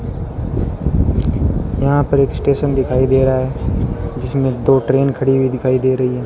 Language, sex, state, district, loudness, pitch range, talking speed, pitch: Hindi, male, Rajasthan, Bikaner, -16 LUFS, 130-135 Hz, 165 wpm, 130 Hz